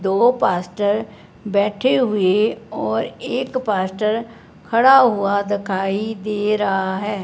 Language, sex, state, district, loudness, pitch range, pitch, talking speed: Hindi, male, Punjab, Fazilka, -19 LUFS, 200-230 Hz, 210 Hz, 110 wpm